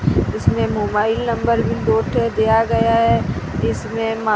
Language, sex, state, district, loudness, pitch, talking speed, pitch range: Hindi, female, Odisha, Sambalpur, -18 LUFS, 220 Hz, 150 wpm, 145-225 Hz